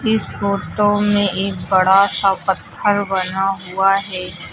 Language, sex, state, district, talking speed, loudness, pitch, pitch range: Hindi, female, Uttar Pradesh, Lucknow, 130 wpm, -17 LUFS, 195 Hz, 190-205 Hz